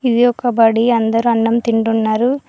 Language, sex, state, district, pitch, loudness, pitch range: Telugu, female, Telangana, Mahabubabad, 230 Hz, -14 LUFS, 225-245 Hz